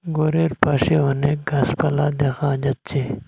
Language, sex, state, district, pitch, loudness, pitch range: Bengali, male, Assam, Hailakandi, 145 Hz, -20 LUFS, 135-155 Hz